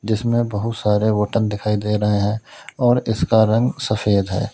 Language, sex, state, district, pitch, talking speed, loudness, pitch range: Hindi, male, Uttar Pradesh, Lalitpur, 110 Hz, 170 wpm, -19 LUFS, 105-115 Hz